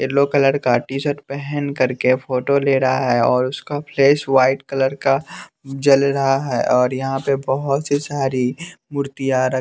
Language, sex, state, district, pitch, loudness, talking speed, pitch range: Hindi, male, Bihar, West Champaran, 135 Hz, -18 LUFS, 180 wpm, 130-140 Hz